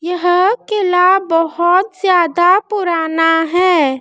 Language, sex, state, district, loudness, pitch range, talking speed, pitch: Hindi, female, Madhya Pradesh, Dhar, -13 LUFS, 330-380 Hz, 90 wpm, 355 Hz